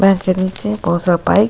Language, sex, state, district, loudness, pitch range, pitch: Hindi, female, Goa, North and South Goa, -16 LUFS, 180-200 Hz, 185 Hz